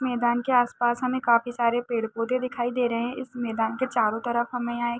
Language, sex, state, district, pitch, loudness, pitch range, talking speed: Hindi, female, Jharkhand, Sahebganj, 240 Hz, -25 LUFS, 235-245 Hz, 230 wpm